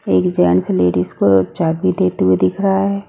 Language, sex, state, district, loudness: Hindi, female, Odisha, Nuapada, -15 LUFS